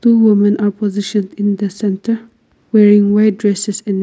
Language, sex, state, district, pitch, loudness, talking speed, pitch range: English, female, Nagaland, Kohima, 205 Hz, -14 LUFS, 135 wpm, 205-215 Hz